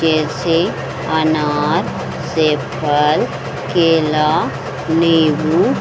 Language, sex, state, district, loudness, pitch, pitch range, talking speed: Hindi, female, Bihar, Saran, -16 LUFS, 155 Hz, 150-160 Hz, 70 wpm